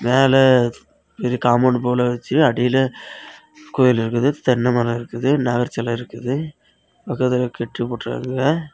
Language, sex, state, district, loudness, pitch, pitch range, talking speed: Tamil, male, Tamil Nadu, Kanyakumari, -19 LUFS, 125 Hz, 120-135 Hz, 110 wpm